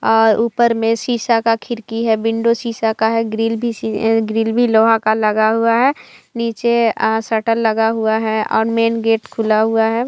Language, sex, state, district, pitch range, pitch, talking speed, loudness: Hindi, female, Bihar, Jamui, 220-230 Hz, 225 Hz, 195 wpm, -16 LUFS